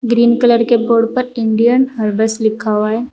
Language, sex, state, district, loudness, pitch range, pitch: Hindi, female, Uttar Pradesh, Saharanpur, -14 LUFS, 220-240 Hz, 230 Hz